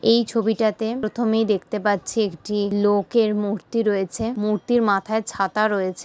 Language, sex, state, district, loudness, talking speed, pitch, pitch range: Bengali, female, West Bengal, Malda, -22 LUFS, 140 wpm, 210 Hz, 205-225 Hz